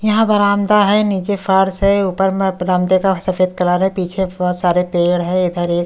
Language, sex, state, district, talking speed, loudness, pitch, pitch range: Hindi, female, Delhi, New Delhi, 205 wpm, -15 LUFS, 190 Hz, 180-200 Hz